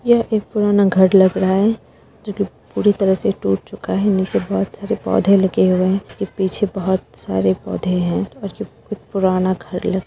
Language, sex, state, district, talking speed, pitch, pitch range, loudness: Hindi, female, Bihar, Purnia, 190 wpm, 190 Hz, 135-205 Hz, -18 LUFS